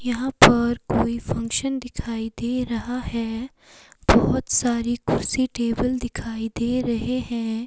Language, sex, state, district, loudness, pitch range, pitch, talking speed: Hindi, female, Himachal Pradesh, Shimla, -23 LUFS, 225-250 Hz, 235 Hz, 125 wpm